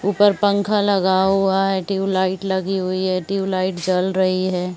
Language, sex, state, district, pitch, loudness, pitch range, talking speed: Chhattisgarhi, female, Chhattisgarh, Rajnandgaon, 190 Hz, -19 LUFS, 185-195 Hz, 165 wpm